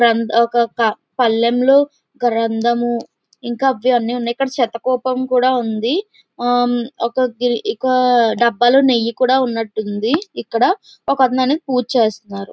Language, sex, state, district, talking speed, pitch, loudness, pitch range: Telugu, female, Andhra Pradesh, Visakhapatnam, 115 wpm, 245 Hz, -17 LUFS, 235-255 Hz